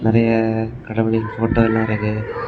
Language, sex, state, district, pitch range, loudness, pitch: Tamil, male, Tamil Nadu, Kanyakumari, 110-115 Hz, -19 LUFS, 110 Hz